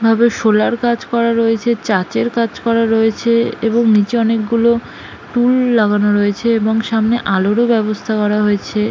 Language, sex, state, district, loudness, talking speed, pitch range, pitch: Bengali, female, West Bengal, Malda, -15 LUFS, 140 wpm, 215-235 Hz, 225 Hz